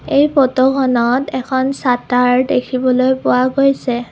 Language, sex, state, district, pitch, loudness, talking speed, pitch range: Assamese, female, Assam, Kamrup Metropolitan, 260 Hz, -14 LUFS, 100 wpm, 250-270 Hz